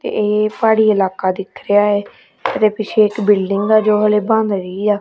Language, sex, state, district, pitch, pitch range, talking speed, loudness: Punjabi, female, Punjab, Kapurthala, 210 Hz, 200-215 Hz, 190 wpm, -15 LUFS